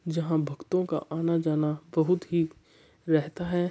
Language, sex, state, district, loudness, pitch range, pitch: Marwari, male, Rajasthan, Churu, -28 LUFS, 155-175 Hz, 160 Hz